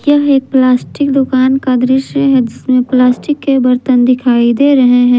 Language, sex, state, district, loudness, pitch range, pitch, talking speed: Hindi, female, Jharkhand, Garhwa, -11 LUFS, 250-275 Hz, 260 Hz, 175 wpm